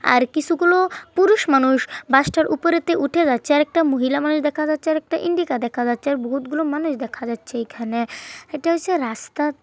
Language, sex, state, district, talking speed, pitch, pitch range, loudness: Bengali, female, West Bengal, Kolkata, 185 wpm, 295 Hz, 255-330 Hz, -20 LUFS